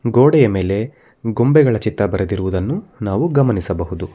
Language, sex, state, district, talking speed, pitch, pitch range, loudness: Kannada, male, Karnataka, Bangalore, 100 wpm, 110 Hz, 95-130 Hz, -17 LUFS